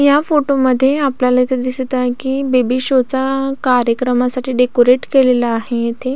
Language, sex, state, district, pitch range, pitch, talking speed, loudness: Marathi, female, Maharashtra, Solapur, 250-265 Hz, 255 Hz, 165 wpm, -15 LUFS